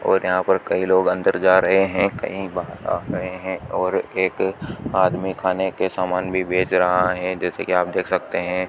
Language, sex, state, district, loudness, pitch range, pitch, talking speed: Hindi, male, Rajasthan, Bikaner, -21 LUFS, 90-95 Hz, 95 Hz, 205 wpm